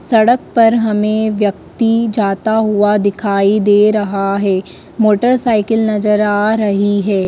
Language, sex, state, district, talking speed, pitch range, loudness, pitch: Hindi, female, Madhya Pradesh, Dhar, 125 wpm, 205-220 Hz, -13 LUFS, 210 Hz